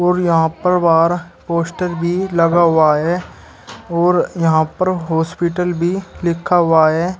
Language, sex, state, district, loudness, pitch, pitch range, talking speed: Hindi, male, Uttar Pradesh, Shamli, -16 LUFS, 170 Hz, 165-180 Hz, 140 wpm